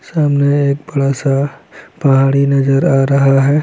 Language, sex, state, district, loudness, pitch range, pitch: Hindi, male, Bihar, Lakhisarai, -13 LUFS, 135-145 Hz, 140 Hz